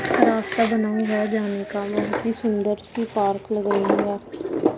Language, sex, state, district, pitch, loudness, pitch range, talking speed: Hindi, female, Punjab, Pathankot, 215 Hz, -23 LUFS, 205-230 Hz, 165 wpm